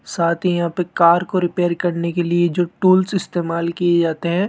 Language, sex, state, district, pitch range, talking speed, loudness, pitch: Hindi, male, Rajasthan, Jaipur, 170-180 Hz, 215 wpm, -18 LUFS, 175 Hz